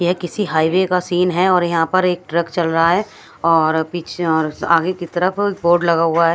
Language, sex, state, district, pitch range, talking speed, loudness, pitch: Hindi, female, Bihar, West Champaran, 165-180 Hz, 225 wpm, -17 LUFS, 175 Hz